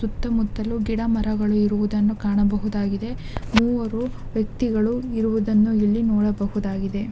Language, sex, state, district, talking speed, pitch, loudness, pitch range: Kannada, female, Karnataka, Dakshina Kannada, 110 wpm, 215 Hz, -22 LUFS, 210-225 Hz